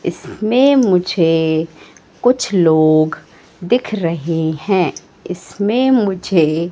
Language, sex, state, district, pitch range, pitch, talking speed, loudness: Hindi, female, Madhya Pradesh, Katni, 165-215 Hz, 180 Hz, 80 wpm, -15 LUFS